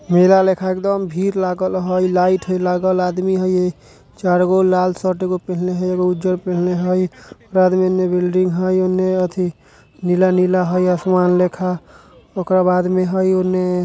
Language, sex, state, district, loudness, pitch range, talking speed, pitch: Maithili, male, Bihar, Vaishali, -17 LUFS, 180-185 Hz, 170 wpm, 185 Hz